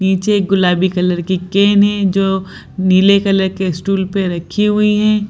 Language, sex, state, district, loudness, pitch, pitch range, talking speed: Hindi, female, Bihar, Lakhisarai, -14 LUFS, 195 Hz, 185-200 Hz, 180 wpm